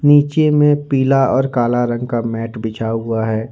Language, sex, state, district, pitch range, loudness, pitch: Hindi, male, Jharkhand, Ranchi, 115-140 Hz, -16 LUFS, 120 Hz